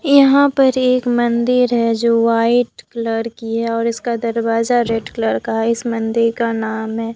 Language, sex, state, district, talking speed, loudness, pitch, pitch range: Hindi, female, Bihar, Katihar, 185 wpm, -16 LUFS, 230 Hz, 230-245 Hz